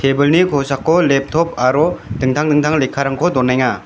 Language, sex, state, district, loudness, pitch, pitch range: Garo, male, Meghalaya, West Garo Hills, -15 LUFS, 140 Hz, 135-155 Hz